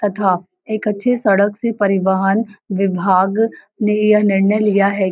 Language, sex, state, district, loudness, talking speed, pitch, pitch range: Hindi, female, Uttar Pradesh, Varanasi, -16 LUFS, 140 wpm, 205 Hz, 195-210 Hz